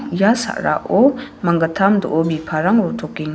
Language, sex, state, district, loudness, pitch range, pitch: Garo, female, Meghalaya, West Garo Hills, -17 LUFS, 160-230 Hz, 195 Hz